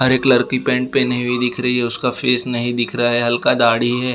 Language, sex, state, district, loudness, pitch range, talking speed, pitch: Hindi, male, Gujarat, Valsad, -16 LUFS, 120-125 Hz, 260 wpm, 125 Hz